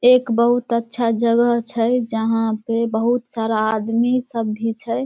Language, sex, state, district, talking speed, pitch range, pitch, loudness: Maithili, female, Bihar, Samastipur, 165 wpm, 225-240 Hz, 230 Hz, -19 LUFS